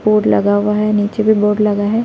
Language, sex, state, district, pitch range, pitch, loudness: Hindi, female, Chhattisgarh, Sarguja, 205-215 Hz, 210 Hz, -14 LUFS